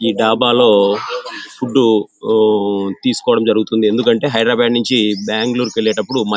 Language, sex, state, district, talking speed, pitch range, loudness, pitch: Telugu, male, Andhra Pradesh, Anantapur, 115 wpm, 105-120 Hz, -14 LUFS, 110 Hz